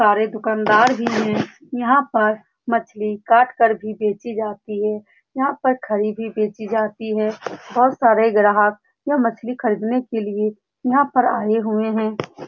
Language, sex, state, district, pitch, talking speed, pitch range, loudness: Hindi, female, Bihar, Saran, 220 Hz, 160 wpm, 215-245 Hz, -19 LUFS